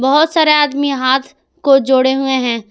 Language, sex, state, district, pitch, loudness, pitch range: Hindi, female, Jharkhand, Palamu, 270 Hz, -13 LUFS, 260-290 Hz